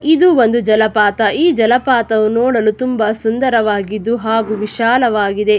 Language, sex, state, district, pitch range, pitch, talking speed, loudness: Kannada, female, Karnataka, Chamarajanagar, 215-245 Hz, 225 Hz, 105 wpm, -14 LUFS